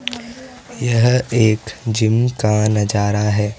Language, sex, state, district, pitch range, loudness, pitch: Hindi, male, Rajasthan, Jaipur, 105-125 Hz, -17 LUFS, 110 Hz